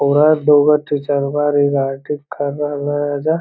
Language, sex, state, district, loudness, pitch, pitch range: Magahi, male, Bihar, Lakhisarai, -16 LUFS, 145 Hz, 145-150 Hz